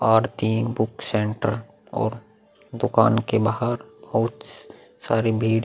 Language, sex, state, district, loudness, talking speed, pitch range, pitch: Hindi, male, Uttar Pradesh, Muzaffarnagar, -23 LUFS, 125 wpm, 110-115 Hz, 110 Hz